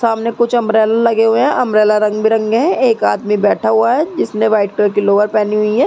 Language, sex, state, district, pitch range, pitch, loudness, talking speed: Hindi, female, Uttar Pradesh, Muzaffarnagar, 210-230 Hz, 220 Hz, -13 LUFS, 235 wpm